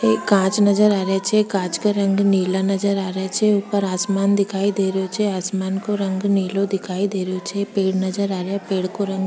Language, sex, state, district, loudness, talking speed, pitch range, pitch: Rajasthani, female, Rajasthan, Churu, -20 LUFS, 240 wpm, 190-200 Hz, 195 Hz